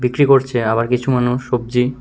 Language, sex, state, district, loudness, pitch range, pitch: Bengali, male, Tripura, West Tripura, -16 LUFS, 120-130 Hz, 125 Hz